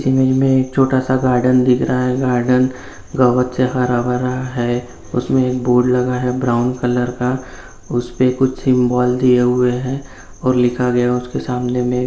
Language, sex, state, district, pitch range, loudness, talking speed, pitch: Hindi, male, Bihar, Jamui, 125-130 Hz, -16 LUFS, 170 wpm, 125 Hz